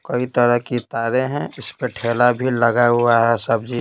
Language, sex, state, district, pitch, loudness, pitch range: Hindi, male, Bihar, Patna, 120 Hz, -18 LUFS, 115-125 Hz